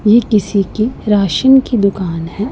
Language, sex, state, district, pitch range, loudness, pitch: Hindi, female, Punjab, Pathankot, 195-225 Hz, -13 LUFS, 210 Hz